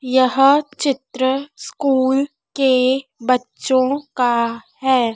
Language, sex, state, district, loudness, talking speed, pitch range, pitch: Hindi, female, Madhya Pradesh, Dhar, -18 LUFS, 80 wpm, 255-275 Hz, 265 Hz